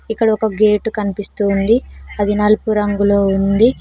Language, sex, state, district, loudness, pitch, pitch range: Telugu, female, Telangana, Mahabubabad, -16 LUFS, 210 Hz, 205-220 Hz